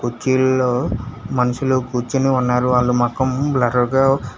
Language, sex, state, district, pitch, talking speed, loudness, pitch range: Telugu, male, Telangana, Hyderabad, 125 Hz, 110 wpm, -18 LUFS, 120-130 Hz